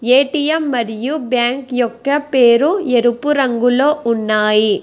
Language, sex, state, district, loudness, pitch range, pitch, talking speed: Telugu, female, Telangana, Hyderabad, -15 LUFS, 235-290 Hz, 250 Hz, 100 wpm